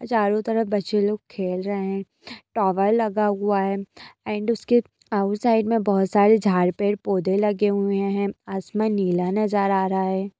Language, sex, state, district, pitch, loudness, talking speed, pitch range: Hindi, female, Bihar, Jamui, 205 Hz, -22 LUFS, 175 wpm, 195-210 Hz